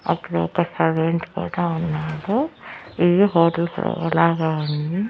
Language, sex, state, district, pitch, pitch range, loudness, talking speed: Telugu, female, Andhra Pradesh, Annamaya, 165 Hz, 160-175 Hz, -21 LUFS, 115 wpm